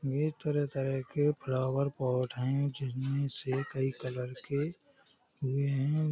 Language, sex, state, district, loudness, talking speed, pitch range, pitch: Hindi, male, Uttar Pradesh, Hamirpur, -33 LUFS, 145 wpm, 130-145 Hz, 135 Hz